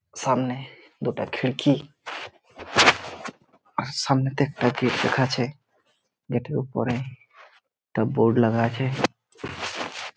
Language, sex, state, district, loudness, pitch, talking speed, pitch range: Bengali, male, West Bengal, Malda, -24 LUFS, 130 Hz, 95 wpm, 120-135 Hz